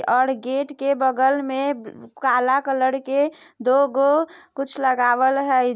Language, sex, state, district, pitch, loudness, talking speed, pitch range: Bajjika, female, Bihar, Vaishali, 270 Hz, -20 LUFS, 135 wpm, 260-280 Hz